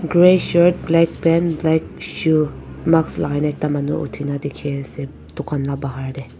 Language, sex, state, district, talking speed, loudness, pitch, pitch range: Nagamese, female, Nagaland, Dimapur, 180 wpm, -19 LUFS, 150 Hz, 140-165 Hz